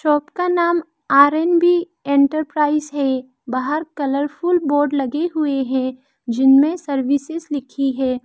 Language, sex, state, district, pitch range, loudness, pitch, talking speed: Hindi, female, Arunachal Pradesh, Lower Dibang Valley, 270-320 Hz, -18 LUFS, 290 Hz, 140 wpm